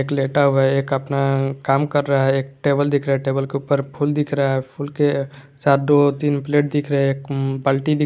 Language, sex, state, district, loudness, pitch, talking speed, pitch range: Hindi, male, Jharkhand, Garhwa, -19 LUFS, 140 Hz, 255 wpm, 135-145 Hz